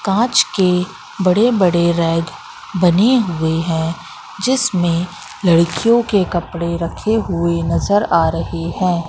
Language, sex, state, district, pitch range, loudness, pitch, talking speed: Hindi, female, Madhya Pradesh, Katni, 170-205 Hz, -16 LUFS, 180 Hz, 120 wpm